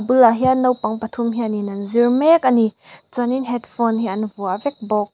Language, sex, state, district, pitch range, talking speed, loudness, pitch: Mizo, female, Mizoram, Aizawl, 215-250 Hz, 200 wpm, -18 LUFS, 235 Hz